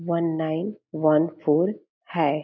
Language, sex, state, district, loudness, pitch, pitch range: Hindi, female, Bihar, Purnia, -24 LUFS, 160 Hz, 155-170 Hz